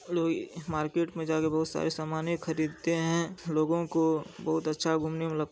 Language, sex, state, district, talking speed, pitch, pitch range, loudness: Maithili, male, Bihar, Supaul, 165 wpm, 160 Hz, 155-170 Hz, -30 LUFS